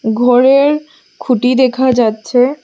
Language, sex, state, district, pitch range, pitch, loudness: Bengali, female, Assam, Hailakandi, 245-270 Hz, 255 Hz, -12 LUFS